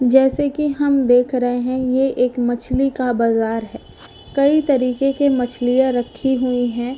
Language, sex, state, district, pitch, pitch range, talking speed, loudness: Hindi, female, Delhi, New Delhi, 255 Hz, 245-270 Hz, 165 wpm, -18 LUFS